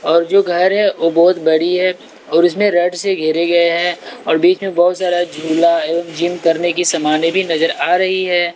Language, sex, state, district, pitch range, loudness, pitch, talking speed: Hindi, male, Bihar, West Champaran, 165-180 Hz, -14 LUFS, 175 Hz, 225 wpm